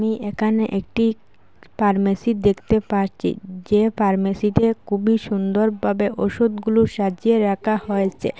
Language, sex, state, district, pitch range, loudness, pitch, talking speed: Bengali, female, Assam, Hailakandi, 200-220 Hz, -20 LUFS, 210 Hz, 100 wpm